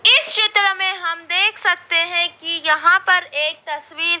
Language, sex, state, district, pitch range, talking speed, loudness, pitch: Hindi, female, Madhya Pradesh, Dhar, 330-380 Hz, 170 wpm, -16 LUFS, 345 Hz